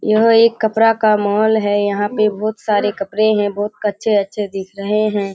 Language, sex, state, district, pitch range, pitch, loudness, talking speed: Hindi, female, Bihar, Kishanganj, 205-215 Hz, 210 Hz, -16 LUFS, 200 wpm